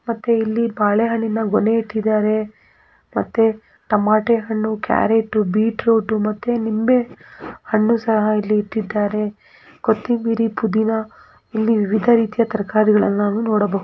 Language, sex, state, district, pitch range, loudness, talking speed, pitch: Kannada, female, Karnataka, Gulbarga, 215-225 Hz, -18 LUFS, 115 wpm, 220 Hz